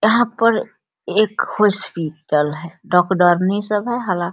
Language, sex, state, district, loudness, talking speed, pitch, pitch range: Hindi, female, Bihar, Muzaffarpur, -18 LUFS, 140 wpm, 190 Hz, 170-215 Hz